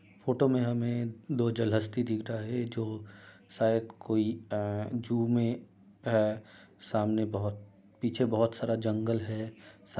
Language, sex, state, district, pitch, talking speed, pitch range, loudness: Hindi, male, Uttar Pradesh, Budaun, 110 Hz, 130 wpm, 105-120 Hz, -31 LUFS